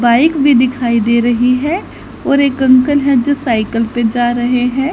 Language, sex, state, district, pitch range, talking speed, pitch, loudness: Hindi, female, Haryana, Charkhi Dadri, 240-280 Hz, 195 wpm, 250 Hz, -12 LUFS